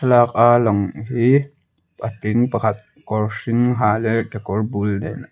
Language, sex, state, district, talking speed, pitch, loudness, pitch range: Mizo, male, Mizoram, Aizawl, 160 wpm, 115 Hz, -19 LUFS, 105-120 Hz